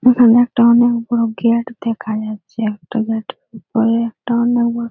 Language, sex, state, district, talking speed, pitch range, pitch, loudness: Bengali, female, West Bengal, Purulia, 160 wpm, 225-235 Hz, 230 Hz, -16 LUFS